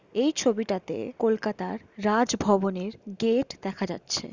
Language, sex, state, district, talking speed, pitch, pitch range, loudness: Bengali, female, West Bengal, Kolkata, 110 wpm, 215 Hz, 195-235 Hz, -27 LUFS